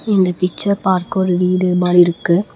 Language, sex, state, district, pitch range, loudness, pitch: Tamil, female, Tamil Nadu, Namakkal, 180-190 Hz, -15 LUFS, 180 Hz